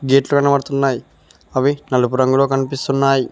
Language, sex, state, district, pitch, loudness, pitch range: Telugu, male, Telangana, Mahabubabad, 135 Hz, -17 LUFS, 130-140 Hz